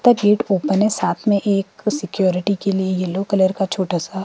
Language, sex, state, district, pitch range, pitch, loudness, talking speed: Hindi, female, Himachal Pradesh, Shimla, 190-205 Hz, 195 Hz, -19 LUFS, 185 wpm